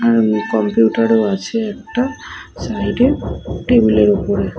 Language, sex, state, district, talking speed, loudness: Bengali, female, West Bengal, Paschim Medinipur, 130 wpm, -16 LUFS